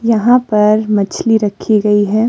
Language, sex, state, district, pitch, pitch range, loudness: Hindi, female, Himachal Pradesh, Shimla, 215 Hz, 210-225 Hz, -12 LUFS